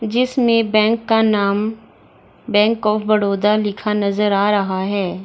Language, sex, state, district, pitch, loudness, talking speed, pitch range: Hindi, female, Bihar, Gaya, 210 Hz, -17 LUFS, 135 wpm, 200-220 Hz